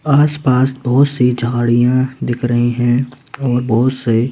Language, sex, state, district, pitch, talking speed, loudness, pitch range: Hindi, male, Madhya Pradesh, Bhopal, 125 Hz, 140 wpm, -15 LUFS, 120-130 Hz